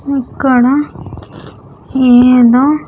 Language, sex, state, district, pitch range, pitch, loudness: Telugu, female, Andhra Pradesh, Sri Satya Sai, 250-280 Hz, 260 Hz, -10 LUFS